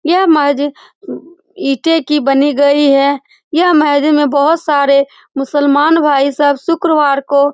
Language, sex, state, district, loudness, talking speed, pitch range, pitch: Hindi, female, Bihar, Saran, -12 LUFS, 135 wpm, 280-315 Hz, 290 Hz